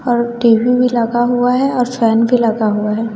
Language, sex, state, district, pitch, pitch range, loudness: Hindi, female, Bihar, West Champaran, 240 Hz, 225-245 Hz, -14 LUFS